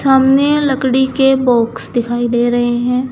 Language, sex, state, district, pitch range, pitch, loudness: Hindi, female, Uttar Pradesh, Saharanpur, 240-270 Hz, 255 Hz, -13 LUFS